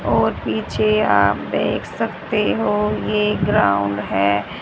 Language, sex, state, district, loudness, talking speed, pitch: Hindi, female, Haryana, Rohtak, -19 LUFS, 115 wpm, 105 Hz